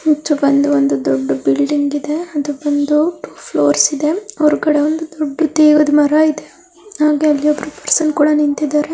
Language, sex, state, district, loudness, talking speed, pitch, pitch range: Kannada, female, Karnataka, Raichur, -15 LUFS, 155 wpm, 300 Hz, 290-310 Hz